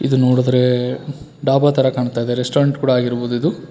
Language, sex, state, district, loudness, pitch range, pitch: Kannada, male, Karnataka, Bangalore, -17 LUFS, 125-140 Hz, 125 Hz